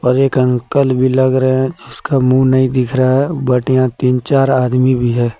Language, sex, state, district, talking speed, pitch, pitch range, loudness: Hindi, male, Jharkhand, Deoghar, 220 wpm, 130 Hz, 125-130 Hz, -13 LUFS